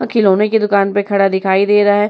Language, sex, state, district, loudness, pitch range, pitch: Hindi, female, Uttar Pradesh, Muzaffarnagar, -13 LUFS, 195-210 Hz, 205 Hz